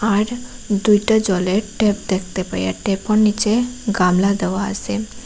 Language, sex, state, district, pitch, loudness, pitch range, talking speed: Bengali, female, Assam, Hailakandi, 205 Hz, -18 LUFS, 190-220 Hz, 135 wpm